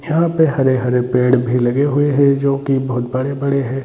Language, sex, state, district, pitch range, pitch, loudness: Hindi, male, Jharkhand, Sahebganj, 125-140 Hz, 135 Hz, -16 LUFS